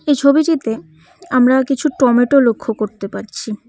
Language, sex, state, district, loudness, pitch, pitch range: Bengali, female, West Bengal, Cooch Behar, -15 LUFS, 255 Hz, 225-280 Hz